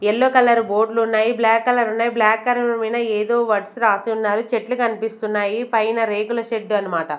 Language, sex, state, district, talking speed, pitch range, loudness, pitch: Telugu, female, Andhra Pradesh, Sri Satya Sai, 165 wpm, 215-235 Hz, -19 LUFS, 225 Hz